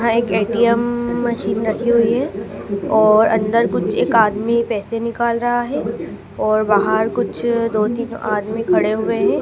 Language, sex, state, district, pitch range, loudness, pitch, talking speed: Hindi, female, Madhya Pradesh, Dhar, 215-235 Hz, -17 LUFS, 230 Hz, 160 wpm